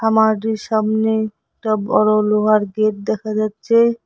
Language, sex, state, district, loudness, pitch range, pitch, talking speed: Bengali, female, West Bengal, Cooch Behar, -18 LUFS, 215-220 Hz, 215 Hz, 120 wpm